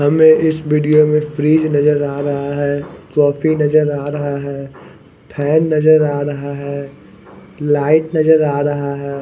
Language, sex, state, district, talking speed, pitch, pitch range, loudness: Hindi, male, Odisha, Khordha, 155 wpm, 145 Hz, 140-155 Hz, -15 LUFS